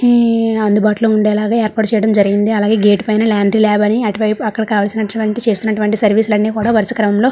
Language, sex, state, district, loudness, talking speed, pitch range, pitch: Telugu, female, Andhra Pradesh, Srikakulam, -14 LUFS, 195 wpm, 210-220 Hz, 215 Hz